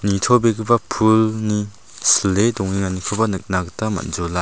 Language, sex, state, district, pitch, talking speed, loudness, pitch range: Garo, male, Meghalaya, South Garo Hills, 105 Hz, 95 wpm, -18 LUFS, 95-110 Hz